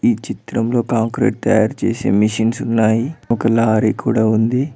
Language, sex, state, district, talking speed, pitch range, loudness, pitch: Telugu, male, Telangana, Mahabubabad, 140 wpm, 110-125 Hz, -17 LUFS, 115 Hz